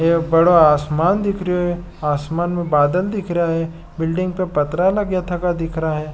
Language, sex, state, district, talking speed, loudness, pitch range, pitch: Marwari, male, Rajasthan, Nagaur, 185 wpm, -18 LUFS, 160-180 Hz, 170 Hz